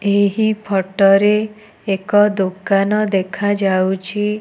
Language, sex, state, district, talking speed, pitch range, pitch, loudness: Odia, female, Odisha, Nuapada, 110 wpm, 195-210 Hz, 200 Hz, -16 LUFS